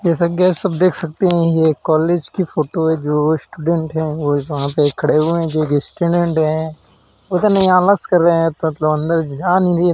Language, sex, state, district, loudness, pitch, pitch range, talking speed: Hindi, male, Uttar Pradesh, Hamirpur, -16 LUFS, 160 Hz, 155-175 Hz, 205 wpm